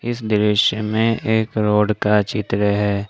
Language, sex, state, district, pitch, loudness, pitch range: Hindi, male, Jharkhand, Ranchi, 105 Hz, -18 LUFS, 105-110 Hz